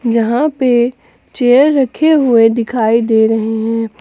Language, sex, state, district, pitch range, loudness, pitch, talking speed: Hindi, female, Jharkhand, Palamu, 225-255 Hz, -12 LUFS, 235 Hz, 135 wpm